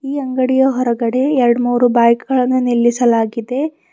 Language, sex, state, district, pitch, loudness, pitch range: Kannada, female, Karnataka, Bidar, 250 Hz, -15 LUFS, 235-265 Hz